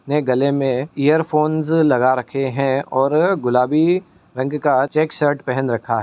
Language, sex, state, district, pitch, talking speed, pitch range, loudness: Hindi, male, Uttar Pradesh, Muzaffarnagar, 140 Hz, 160 wpm, 130-155 Hz, -18 LUFS